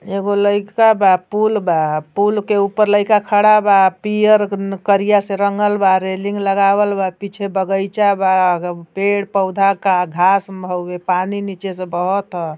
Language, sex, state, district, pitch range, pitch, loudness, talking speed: Bhojpuri, female, Uttar Pradesh, Ghazipur, 185-205 Hz, 195 Hz, -16 LUFS, 155 wpm